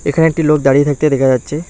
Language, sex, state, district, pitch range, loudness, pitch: Bengali, male, West Bengal, Alipurduar, 135-155 Hz, -13 LUFS, 145 Hz